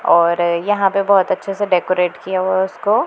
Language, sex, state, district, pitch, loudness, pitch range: Hindi, female, Punjab, Pathankot, 190 Hz, -16 LUFS, 180-200 Hz